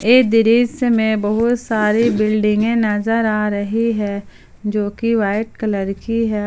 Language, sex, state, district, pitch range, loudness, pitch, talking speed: Hindi, female, Jharkhand, Palamu, 210-230 Hz, -17 LUFS, 215 Hz, 150 wpm